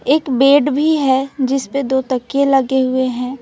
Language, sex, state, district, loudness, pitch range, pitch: Hindi, female, West Bengal, Alipurduar, -15 LUFS, 260-280 Hz, 270 Hz